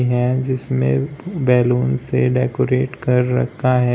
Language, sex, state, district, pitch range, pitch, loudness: Hindi, male, Uttar Pradesh, Shamli, 105-130 Hz, 125 Hz, -18 LUFS